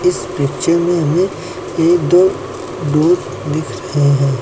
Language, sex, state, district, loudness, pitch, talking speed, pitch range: Hindi, male, Uttar Pradesh, Lucknow, -15 LUFS, 165 Hz, 135 wpm, 140-180 Hz